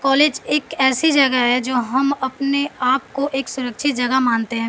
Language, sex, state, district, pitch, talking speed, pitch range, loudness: Hindi, female, Bihar, Patna, 265 Hz, 190 wpm, 250-280 Hz, -18 LUFS